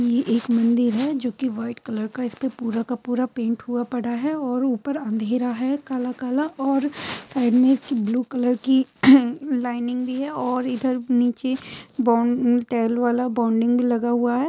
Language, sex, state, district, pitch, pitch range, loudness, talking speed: Hindi, female, Jharkhand, Jamtara, 245 Hz, 240-260 Hz, -22 LUFS, 185 wpm